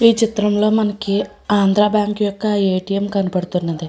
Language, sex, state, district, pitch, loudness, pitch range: Telugu, female, Andhra Pradesh, Srikakulam, 205 Hz, -18 LUFS, 195-210 Hz